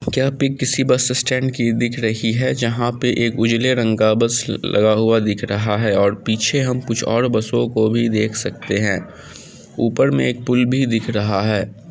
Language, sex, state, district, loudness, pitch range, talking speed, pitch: Angika, male, Bihar, Samastipur, -18 LUFS, 110-125 Hz, 190 wpm, 115 Hz